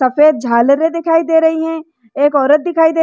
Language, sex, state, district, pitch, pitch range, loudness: Hindi, female, Chhattisgarh, Rajnandgaon, 315 Hz, 280-325 Hz, -13 LUFS